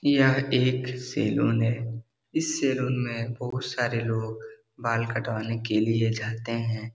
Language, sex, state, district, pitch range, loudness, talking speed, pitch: Hindi, male, Bihar, Darbhanga, 115-130 Hz, -27 LUFS, 140 wpm, 115 Hz